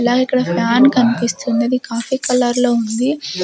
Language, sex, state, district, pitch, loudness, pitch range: Telugu, female, Andhra Pradesh, Sri Satya Sai, 245 Hz, -16 LUFS, 235-255 Hz